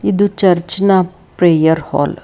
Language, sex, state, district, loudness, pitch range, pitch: Kannada, female, Karnataka, Bangalore, -14 LUFS, 170-195 Hz, 185 Hz